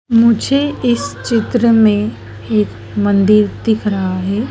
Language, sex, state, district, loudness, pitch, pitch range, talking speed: Hindi, female, Madhya Pradesh, Dhar, -14 LUFS, 210 Hz, 185-230 Hz, 120 wpm